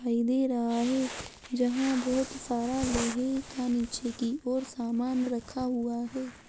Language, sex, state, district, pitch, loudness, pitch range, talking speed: Hindi, female, Bihar, Muzaffarpur, 250 Hz, -30 LUFS, 240-260 Hz, 150 wpm